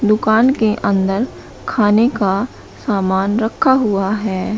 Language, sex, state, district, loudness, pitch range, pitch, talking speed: Hindi, male, Uttar Pradesh, Shamli, -16 LUFS, 195-225 Hz, 215 Hz, 120 wpm